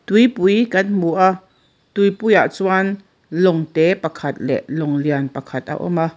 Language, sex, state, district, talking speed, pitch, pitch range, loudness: Mizo, female, Mizoram, Aizawl, 155 wpm, 185 Hz, 160-195 Hz, -18 LUFS